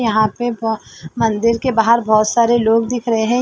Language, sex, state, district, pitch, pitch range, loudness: Hindi, female, Uttar Pradesh, Jalaun, 225 Hz, 220-240 Hz, -16 LUFS